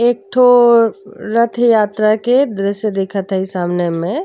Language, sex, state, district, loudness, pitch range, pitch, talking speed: Bhojpuri, female, Uttar Pradesh, Deoria, -14 LUFS, 195-240 Hz, 215 Hz, 155 wpm